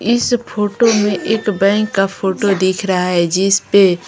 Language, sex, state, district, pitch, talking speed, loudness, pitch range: Hindi, female, Bihar, Patna, 200 Hz, 190 wpm, -15 LUFS, 190-215 Hz